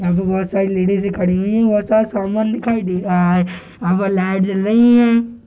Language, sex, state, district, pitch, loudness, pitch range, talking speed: Hindi, male, Bihar, Darbhanga, 195 Hz, -16 LUFS, 185-220 Hz, 240 wpm